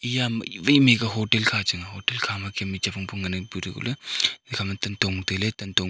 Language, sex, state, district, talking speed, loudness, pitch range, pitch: Wancho, male, Arunachal Pradesh, Longding, 255 wpm, -24 LUFS, 95-115 Hz, 100 Hz